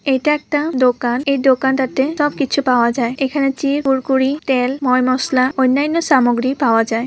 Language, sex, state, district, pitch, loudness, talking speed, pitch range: Bengali, female, West Bengal, Purulia, 265 Hz, -16 LUFS, 180 wpm, 255-280 Hz